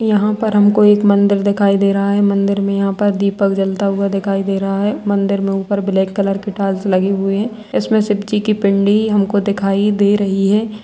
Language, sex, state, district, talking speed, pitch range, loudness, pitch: Hindi, female, Bihar, Araria, 220 wpm, 195-205 Hz, -15 LUFS, 200 Hz